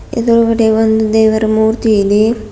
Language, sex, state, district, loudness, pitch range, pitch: Kannada, female, Karnataka, Bidar, -11 LUFS, 220-230 Hz, 220 Hz